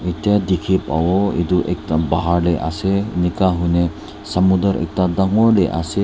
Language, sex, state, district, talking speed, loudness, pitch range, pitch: Nagamese, male, Nagaland, Dimapur, 180 wpm, -18 LUFS, 85-95 Hz, 90 Hz